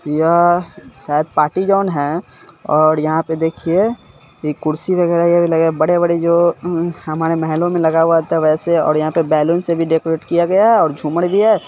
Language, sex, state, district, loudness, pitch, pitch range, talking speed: Hindi, male, Bihar, Sitamarhi, -15 LUFS, 165 Hz, 155-175 Hz, 205 wpm